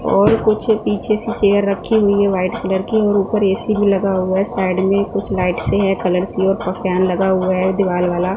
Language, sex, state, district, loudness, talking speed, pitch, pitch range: Hindi, female, Punjab, Fazilka, -17 LUFS, 245 wpm, 195 Hz, 185-205 Hz